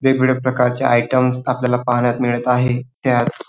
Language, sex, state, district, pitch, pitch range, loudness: Marathi, male, Maharashtra, Dhule, 125 Hz, 125-130 Hz, -17 LUFS